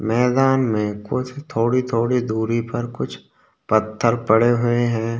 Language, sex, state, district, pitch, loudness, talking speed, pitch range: Hindi, male, Uttarakhand, Tehri Garhwal, 115 Hz, -20 LUFS, 125 wpm, 110-125 Hz